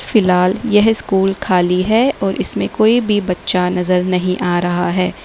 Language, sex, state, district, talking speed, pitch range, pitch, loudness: Hindi, female, Uttar Pradesh, Lalitpur, 170 wpm, 180-215 Hz, 185 Hz, -15 LUFS